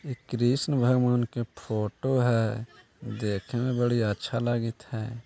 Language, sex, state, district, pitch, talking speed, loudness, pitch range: Magahi, male, Bihar, Jahanabad, 120 Hz, 125 wpm, -28 LUFS, 110-125 Hz